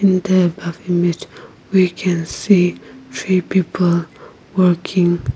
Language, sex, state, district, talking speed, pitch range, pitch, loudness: English, female, Nagaland, Kohima, 110 wpm, 170-185 Hz, 180 Hz, -17 LUFS